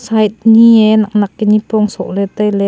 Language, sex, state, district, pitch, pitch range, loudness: Wancho, female, Arunachal Pradesh, Longding, 215 Hz, 200-220 Hz, -11 LUFS